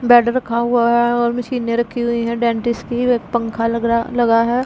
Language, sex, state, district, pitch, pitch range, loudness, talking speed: Hindi, female, Punjab, Pathankot, 235 Hz, 230-240 Hz, -17 LUFS, 205 wpm